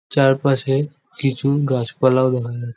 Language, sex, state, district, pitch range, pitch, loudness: Bengali, male, West Bengal, Jhargram, 125-140 Hz, 135 Hz, -19 LUFS